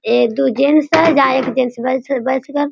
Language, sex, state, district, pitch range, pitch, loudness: Hindi, female, Bihar, Sitamarhi, 255-285 Hz, 265 Hz, -15 LUFS